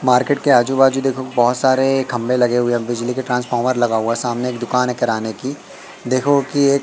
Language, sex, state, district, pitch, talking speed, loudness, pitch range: Hindi, male, Madhya Pradesh, Katni, 125 Hz, 220 wpm, -17 LUFS, 120-135 Hz